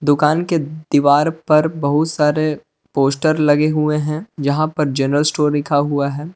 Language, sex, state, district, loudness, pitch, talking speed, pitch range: Hindi, male, Jharkhand, Palamu, -17 LUFS, 150 Hz, 160 wpm, 145-155 Hz